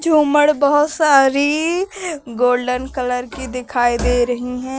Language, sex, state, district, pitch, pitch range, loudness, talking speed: Hindi, female, Uttar Pradesh, Lucknow, 265 Hz, 250-300 Hz, -17 LUFS, 125 wpm